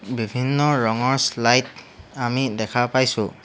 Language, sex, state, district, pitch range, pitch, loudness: Assamese, male, Assam, Hailakandi, 115-130 Hz, 125 Hz, -20 LUFS